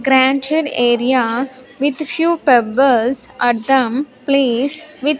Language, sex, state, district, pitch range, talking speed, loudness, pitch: English, female, Andhra Pradesh, Sri Satya Sai, 250-285 Hz, 115 wpm, -16 LUFS, 265 Hz